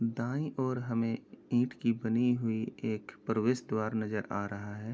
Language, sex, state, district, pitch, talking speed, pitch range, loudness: Hindi, male, Uttar Pradesh, Jyotiba Phule Nagar, 115 Hz, 180 wpm, 110-120 Hz, -33 LUFS